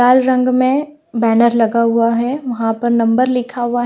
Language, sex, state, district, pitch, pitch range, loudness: Hindi, female, Haryana, Jhajjar, 240 Hz, 230-255 Hz, -15 LUFS